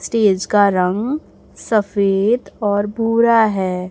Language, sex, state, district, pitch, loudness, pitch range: Hindi, male, Chhattisgarh, Raipur, 205 Hz, -17 LUFS, 195-225 Hz